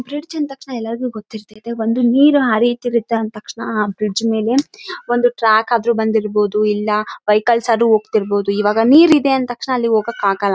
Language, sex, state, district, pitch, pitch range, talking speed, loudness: Kannada, female, Karnataka, Raichur, 230 Hz, 215-245 Hz, 110 wpm, -16 LUFS